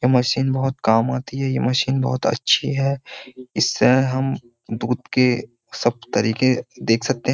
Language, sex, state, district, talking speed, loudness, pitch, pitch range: Hindi, male, Uttar Pradesh, Jyotiba Phule Nagar, 165 wpm, -20 LUFS, 130 Hz, 120-135 Hz